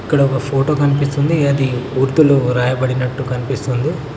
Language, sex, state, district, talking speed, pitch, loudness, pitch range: Telugu, male, Telangana, Mahabubabad, 115 wpm, 135 Hz, -16 LUFS, 130-145 Hz